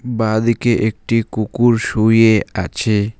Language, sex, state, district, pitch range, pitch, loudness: Bengali, male, West Bengal, Alipurduar, 110-115 Hz, 110 Hz, -16 LUFS